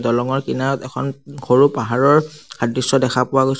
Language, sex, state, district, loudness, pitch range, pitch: Assamese, male, Assam, Sonitpur, -18 LUFS, 125-140 Hz, 135 Hz